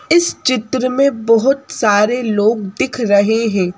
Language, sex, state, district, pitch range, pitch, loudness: Hindi, female, Madhya Pradesh, Bhopal, 210-260 Hz, 230 Hz, -15 LUFS